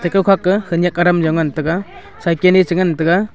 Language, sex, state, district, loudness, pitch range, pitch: Wancho, male, Arunachal Pradesh, Longding, -15 LUFS, 170-185 Hz, 175 Hz